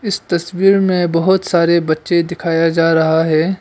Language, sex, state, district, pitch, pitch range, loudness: Hindi, male, Arunachal Pradesh, Longding, 170 Hz, 165-185 Hz, -14 LUFS